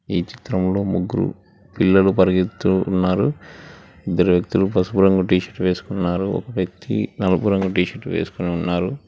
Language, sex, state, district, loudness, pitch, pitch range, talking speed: Telugu, male, Telangana, Hyderabad, -20 LUFS, 95 Hz, 90-95 Hz, 140 wpm